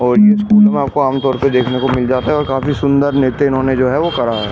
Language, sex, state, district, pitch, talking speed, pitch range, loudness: Hindi, male, Delhi, New Delhi, 135 Hz, 280 wpm, 130-145 Hz, -14 LUFS